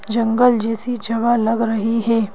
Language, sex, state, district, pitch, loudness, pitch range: Hindi, female, Madhya Pradesh, Bhopal, 230 Hz, -18 LUFS, 225-235 Hz